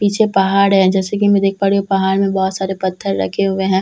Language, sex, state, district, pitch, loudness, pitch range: Hindi, female, Bihar, Katihar, 195 Hz, -15 LUFS, 190-200 Hz